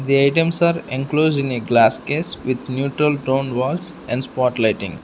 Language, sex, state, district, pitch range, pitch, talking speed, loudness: English, male, Arunachal Pradesh, Lower Dibang Valley, 130-150 Hz, 135 Hz, 180 wpm, -19 LUFS